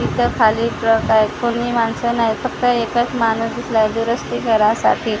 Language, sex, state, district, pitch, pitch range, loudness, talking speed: Marathi, female, Maharashtra, Gondia, 230 Hz, 220-240 Hz, -17 LUFS, 150 wpm